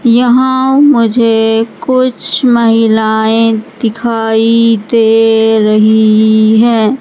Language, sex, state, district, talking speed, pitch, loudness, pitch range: Hindi, male, Madhya Pradesh, Katni, 70 wpm, 225 Hz, -9 LUFS, 220-235 Hz